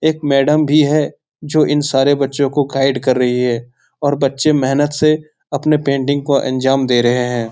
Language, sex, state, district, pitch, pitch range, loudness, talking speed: Hindi, male, Bihar, Jahanabad, 140 Hz, 130-150 Hz, -15 LUFS, 185 wpm